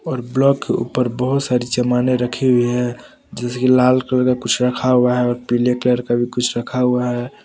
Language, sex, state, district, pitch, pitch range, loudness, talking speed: Hindi, male, Jharkhand, Palamu, 125 Hz, 120-125 Hz, -17 LUFS, 225 wpm